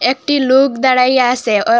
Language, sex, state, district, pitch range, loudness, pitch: Bengali, female, Assam, Hailakandi, 245-270 Hz, -12 LUFS, 255 Hz